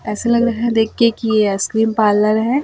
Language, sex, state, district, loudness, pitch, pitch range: Hindi, female, Chhattisgarh, Raipur, -16 LUFS, 225 Hz, 215-235 Hz